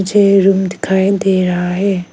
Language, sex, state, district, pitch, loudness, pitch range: Hindi, female, Arunachal Pradesh, Lower Dibang Valley, 190 Hz, -13 LUFS, 185-195 Hz